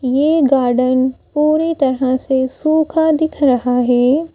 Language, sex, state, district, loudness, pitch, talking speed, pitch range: Hindi, female, Madhya Pradesh, Bhopal, -15 LUFS, 270 Hz, 125 wpm, 255-310 Hz